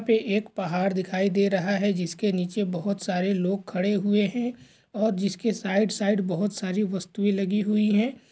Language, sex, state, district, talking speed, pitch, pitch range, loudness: Hindi, male, Uttar Pradesh, Ghazipur, 180 wpm, 200 Hz, 190-210 Hz, -25 LUFS